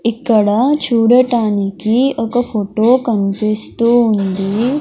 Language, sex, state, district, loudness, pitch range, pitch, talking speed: Telugu, male, Andhra Pradesh, Sri Satya Sai, -14 LUFS, 210-245 Hz, 230 Hz, 75 wpm